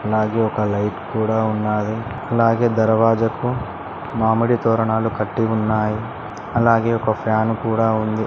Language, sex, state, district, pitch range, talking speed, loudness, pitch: Telugu, male, Telangana, Hyderabad, 110-115 Hz, 115 wpm, -19 LUFS, 110 Hz